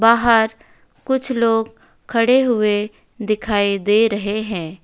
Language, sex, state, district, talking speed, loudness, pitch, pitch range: Hindi, female, West Bengal, Alipurduar, 110 wpm, -18 LUFS, 220 Hz, 205-230 Hz